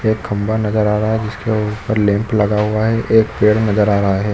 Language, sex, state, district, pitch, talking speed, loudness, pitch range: Hindi, male, Chhattisgarh, Bilaspur, 105 Hz, 250 wpm, -16 LUFS, 105-110 Hz